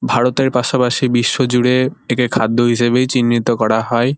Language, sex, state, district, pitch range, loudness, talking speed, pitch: Bengali, male, West Bengal, Kolkata, 120-130 Hz, -15 LUFS, 130 wpm, 125 Hz